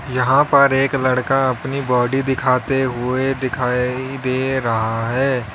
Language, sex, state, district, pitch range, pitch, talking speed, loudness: Hindi, male, Uttar Pradesh, Lalitpur, 125-135 Hz, 130 Hz, 130 wpm, -18 LUFS